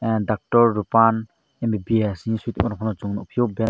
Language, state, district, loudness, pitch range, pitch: Kokborok, Tripura, Dhalai, -22 LUFS, 105-115 Hz, 110 Hz